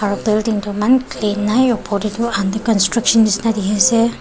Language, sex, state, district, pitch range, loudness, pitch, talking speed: Nagamese, female, Nagaland, Dimapur, 205-230 Hz, -16 LUFS, 215 Hz, 200 wpm